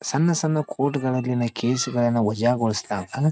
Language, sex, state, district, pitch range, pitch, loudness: Kannada, male, Karnataka, Dharwad, 120-140 Hz, 125 Hz, -23 LUFS